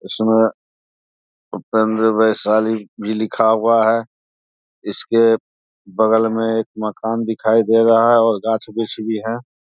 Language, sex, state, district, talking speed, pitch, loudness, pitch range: Hindi, male, Bihar, Vaishali, 135 wpm, 110 Hz, -17 LUFS, 110-115 Hz